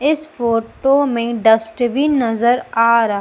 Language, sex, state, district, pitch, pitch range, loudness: Hindi, female, Madhya Pradesh, Umaria, 235 Hz, 230-270 Hz, -16 LUFS